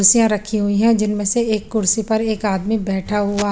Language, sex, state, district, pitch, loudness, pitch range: Hindi, female, Chandigarh, Chandigarh, 210 Hz, -18 LUFS, 205-220 Hz